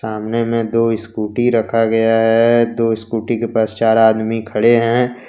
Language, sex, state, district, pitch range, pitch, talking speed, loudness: Hindi, male, Jharkhand, Ranchi, 110-115 Hz, 115 Hz, 170 wpm, -15 LUFS